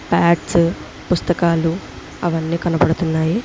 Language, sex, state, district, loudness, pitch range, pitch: Telugu, female, Andhra Pradesh, Visakhapatnam, -18 LUFS, 165-175 Hz, 170 Hz